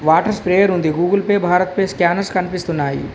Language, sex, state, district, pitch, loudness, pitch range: Telugu, male, Telangana, Komaram Bheem, 180 Hz, -17 LUFS, 170-195 Hz